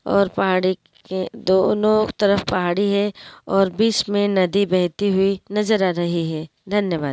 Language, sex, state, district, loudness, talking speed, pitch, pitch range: Hindi, female, Uttarakhand, Uttarkashi, -20 LUFS, 150 wpm, 195 Hz, 185-205 Hz